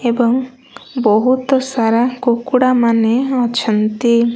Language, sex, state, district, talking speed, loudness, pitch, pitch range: Odia, female, Odisha, Malkangiri, 85 wpm, -15 LUFS, 240 Hz, 235-255 Hz